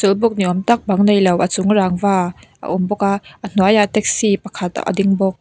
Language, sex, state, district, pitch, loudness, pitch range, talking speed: Mizo, female, Mizoram, Aizawl, 200 Hz, -16 LUFS, 185-205 Hz, 235 wpm